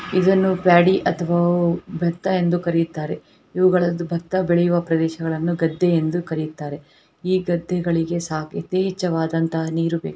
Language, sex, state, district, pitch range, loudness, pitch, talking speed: Kannada, female, Karnataka, Bellary, 165-180 Hz, -20 LUFS, 170 Hz, 110 wpm